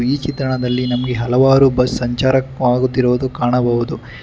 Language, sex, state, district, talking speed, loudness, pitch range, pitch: Kannada, male, Karnataka, Bangalore, 115 wpm, -16 LUFS, 125-130 Hz, 125 Hz